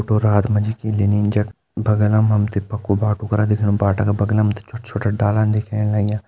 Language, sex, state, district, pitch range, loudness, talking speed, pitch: Hindi, male, Uttarakhand, Uttarkashi, 105-110 Hz, -19 LUFS, 260 wpm, 105 Hz